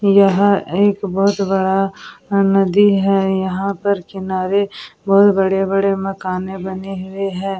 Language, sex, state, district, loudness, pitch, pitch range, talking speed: Hindi, female, Bihar, Vaishali, -16 LUFS, 195 Hz, 190-200 Hz, 125 wpm